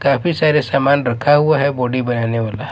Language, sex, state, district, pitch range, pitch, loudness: Hindi, male, Maharashtra, Mumbai Suburban, 125-145 Hz, 140 Hz, -16 LUFS